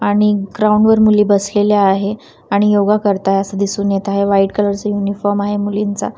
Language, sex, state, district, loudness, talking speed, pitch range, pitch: Marathi, female, Maharashtra, Washim, -14 LUFS, 195 wpm, 200-210 Hz, 205 Hz